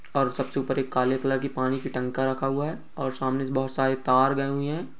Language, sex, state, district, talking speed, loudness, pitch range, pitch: Hindi, male, Uttar Pradesh, Etah, 265 wpm, -26 LUFS, 130-135 Hz, 135 Hz